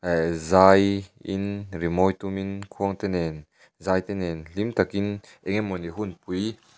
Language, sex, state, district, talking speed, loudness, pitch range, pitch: Mizo, male, Mizoram, Aizawl, 140 wpm, -25 LUFS, 90-100 Hz, 95 Hz